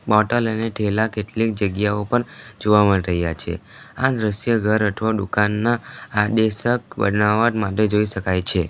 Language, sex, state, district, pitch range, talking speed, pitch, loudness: Gujarati, male, Gujarat, Valsad, 100-115 Hz, 145 wpm, 105 Hz, -20 LUFS